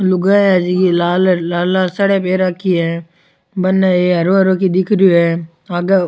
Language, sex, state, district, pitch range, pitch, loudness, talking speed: Rajasthani, male, Rajasthan, Churu, 175-190 Hz, 185 Hz, -14 LUFS, 185 wpm